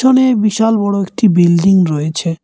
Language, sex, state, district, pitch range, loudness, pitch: Bengali, male, West Bengal, Cooch Behar, 170-220 Hz, -12 LUFS, 195 Hz